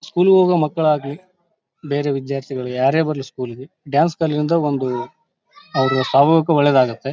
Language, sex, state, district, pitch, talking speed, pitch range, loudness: Kannada, male, Karnataka, Bellary, 145 Hz, 135 wpm, 135-165 Hz, -18 LUFS